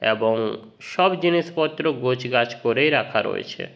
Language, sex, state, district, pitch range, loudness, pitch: Bengali, male, West Bengal, Jhargram, 115-165 Hz, -22 LUFS, 125 Hz